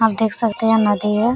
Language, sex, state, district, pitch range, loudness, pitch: Hindi, female, Jharkhand, Sahebganj, 210-225 Hz, -17 LUFS, 220 Hz